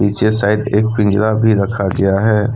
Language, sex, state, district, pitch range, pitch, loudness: Hindi, male, Jharkhand, Deoghar, 100-110 Hz, 105 Hz, -14 LUFS